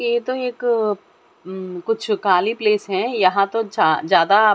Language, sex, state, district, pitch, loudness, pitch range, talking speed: Hindi, female, Chandigarh, Chandigarh, 210 Hz, -19 LUFS, 185-225 Hz, 170 wpm